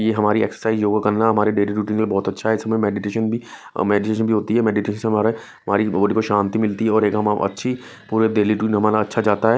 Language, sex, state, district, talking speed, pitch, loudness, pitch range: Hindi, male, Chhattisgarh, Raipur, 245 wpm, 110 Hz, -19 LUFS, 105-110 Hz